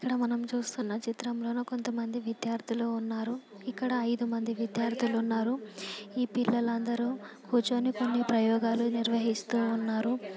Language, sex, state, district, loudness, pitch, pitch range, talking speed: Telugu, female, Telangana, Karimnagar, -31 LUFS, 235 Hz, 230-245 Hz, 105 wpm